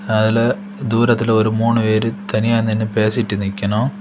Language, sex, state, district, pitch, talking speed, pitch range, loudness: Tamil, male, Tamil Nadu, Kanyakumari, 110 Hz, 135 wpm, 110-115 Hz, -17 LUFS